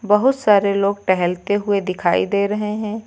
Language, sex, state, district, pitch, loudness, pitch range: Hindi, female, Uttar Pradesh, Lucknow, 205 Hz, -18 LUFS, 195-210 Hz